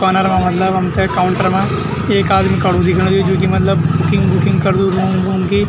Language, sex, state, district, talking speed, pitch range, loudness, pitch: Garhwali, male, Uttarakhand, Tehri Garhwal, 200 wpm, 180-190 Hz, -14 LUFS, 185 Hz